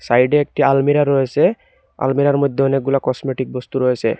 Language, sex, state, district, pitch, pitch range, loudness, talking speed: Bengali, male, Assam, Hailakandi, 135 Hz, 130-140 Hz, -17 LUFS, 170 wpm